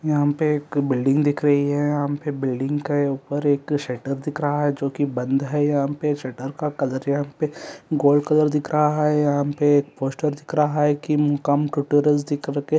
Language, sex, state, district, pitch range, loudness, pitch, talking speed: Hindi, male, Chhattisgarh, Rajnandgaon, 140-150 Hz, -22 LUFS, 145 Hz, 210 wpm